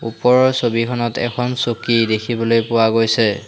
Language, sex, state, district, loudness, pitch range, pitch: Assamese, male, Assam, Hailakandi, -17 LUFS, 115-120 Hz, 115 Hz